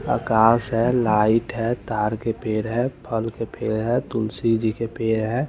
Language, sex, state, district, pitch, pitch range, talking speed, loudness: Hindi, male, Chandigarh, Chandigarh, 115 Hz, 110-120 Hz, 175 wpm, -22 LUFS